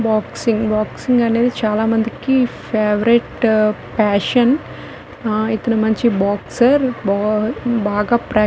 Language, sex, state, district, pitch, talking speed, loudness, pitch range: Telugu, female, Telangana, Nalgonda, 220 Hz, 105 wpm, -17 LUFS, 215-240 Hz